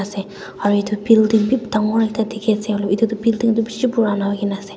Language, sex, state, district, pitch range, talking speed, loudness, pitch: Nagamese, female, Nagaland, Dimapur, 205-225 Hz, 215 wpm, -18 LUFS, 215 Hz